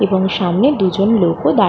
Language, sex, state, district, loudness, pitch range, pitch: Bengali, female, West Bengal, Kolkata, -15 LUFS, 180-205 Hz, 190 Hz